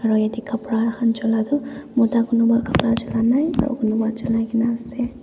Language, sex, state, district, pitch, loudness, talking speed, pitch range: Nagamese, female, Nagaland, Dimapur, 230 Hz, -20 LUFS, 160 wpm, 225-240 Hz